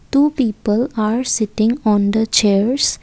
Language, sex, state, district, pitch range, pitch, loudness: English, female, Assam, Kamrup Metropolitan, 210-250 Hz, 220 Hz, -16 LUFS